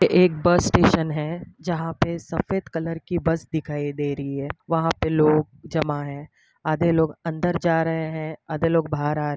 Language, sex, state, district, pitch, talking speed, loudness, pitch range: Hindi, male, Maharashtra, Nagpur, 160 Hz, 200 wpm, -23 LUFS, 150-165 Hz